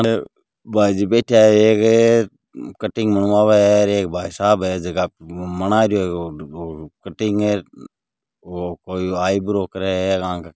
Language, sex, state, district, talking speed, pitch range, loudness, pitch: Marwari, male, Rajasthan, Nagaur, 100 wpm, 90-110 Hz, -17 LUFS, 100 Hz